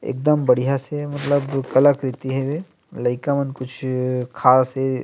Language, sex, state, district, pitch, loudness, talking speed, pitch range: Chhattisgarhi, male, Chhattisgarh, Rajnandgaon, 135 Hz, -20 LUFS, 130 wpm, 130-145 Hz